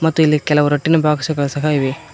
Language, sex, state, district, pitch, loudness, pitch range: Kannada, male, Karnataka, Koppal, 150 Hz, -16 LUFS, 145-155 Hz